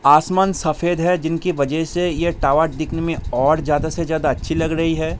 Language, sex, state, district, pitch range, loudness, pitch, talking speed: Hindi, male, Bihar, Saharsa, 160-170 Hz, -19 LUFS, 165 Hz, 220 wpm